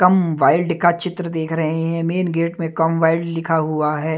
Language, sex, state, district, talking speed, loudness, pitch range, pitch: Hindi, male, Haryana, Jhajjar, 215 wpm, -19 LUFS, 160-170 Hz, 165 Hz